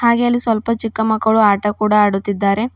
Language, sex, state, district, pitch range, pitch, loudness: Kannada, female, Karnataka, Bidar, 205-230 Hz, 220 Hz, -16 LUFS